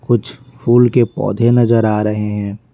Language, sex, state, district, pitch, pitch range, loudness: Hindi, male, Bihar, Patna, 120 Hz, 105-120 Hz, -14 LUFS